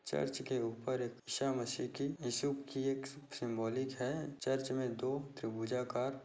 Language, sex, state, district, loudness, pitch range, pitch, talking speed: Hindi, male, Chhattisgarh, Korba, -39 LUFS, 125-135 Hz, 130 Hz, 155 wpm